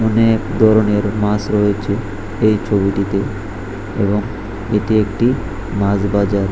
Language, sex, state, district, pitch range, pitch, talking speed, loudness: Bengali, male, Tripura, West Tripura, 100-110 Hz, 105 Hz, 100 wpm, -17 LUFS